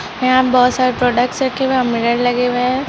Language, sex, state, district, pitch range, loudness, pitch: Hindi, female, Bihar, East Champaran, 245-255 Hz, -15 LUFS, 250 Hz